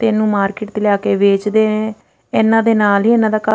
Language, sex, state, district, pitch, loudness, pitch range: Punjabi, female, Punjab, Fazilka, 215 Hz, -15 LUFS, 205-220 Hz